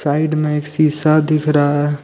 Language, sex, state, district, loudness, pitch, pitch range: Hindi, male, Jharkhand, Deoghar, -16 LUFS, 150 Hz, 145-155 Hz